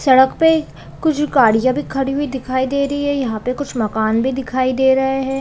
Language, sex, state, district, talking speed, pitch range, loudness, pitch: Hindi, female, Chhattisgarh, Balrampur, 230 wpm, 255-280 Hz, -17 LUFS, 265 Hz